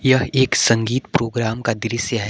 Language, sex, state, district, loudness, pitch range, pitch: Hindi, male, Jharkhand, Garhwa, -19 LUFS, 115-130 Hz, 115 Hz